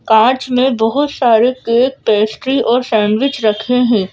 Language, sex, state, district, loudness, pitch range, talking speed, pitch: Hindi, female, Madhya Pradesh, Bhopal, -13 LUFS, 220-260 Hz, 145 wpm, 240 Hz